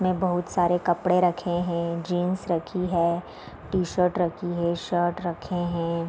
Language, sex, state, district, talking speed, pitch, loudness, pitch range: Hindi, female, Bihar, Darbhanga, 155 wpm, 175 Hz, -26 LUFS, 170-180 Hz